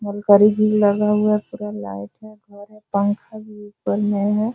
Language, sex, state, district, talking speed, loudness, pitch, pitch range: Hindi, female, Bihar, Jahanabad, 170 wpm, -19 LUFS, 205 Hz, 205-215 Hz